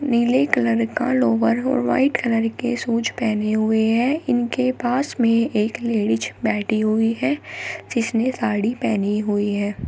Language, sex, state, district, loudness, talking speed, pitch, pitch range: Hindi, female, Uttar Pradesh, Shamli, -20 LUFS, 150 wpm, 230 Hz, 220-250 Hz